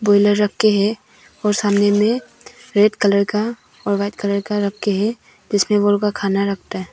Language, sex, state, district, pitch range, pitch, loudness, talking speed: Hindi, female, Arunachal Pradesh, Papum Pare, 200-210 Hz, 205 Hz, -18 LUFS, 180 wpm